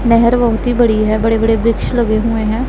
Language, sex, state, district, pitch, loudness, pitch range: Hindi, female, Punjab, Pathankot, 230 Hz, -13 LUFS, 220-240 Hz